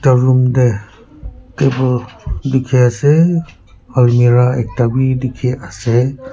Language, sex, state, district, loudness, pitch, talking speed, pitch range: Nagamese, male, Nagaland, Kohima, -14 LUFS, 125 Hz, 105 wpm, 120-130 Hz